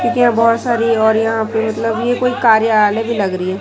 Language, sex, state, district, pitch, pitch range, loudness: Hindi, female, Chhattisgarh, Raipur, 225 Hz, 220-235 Hz, -14 LUFS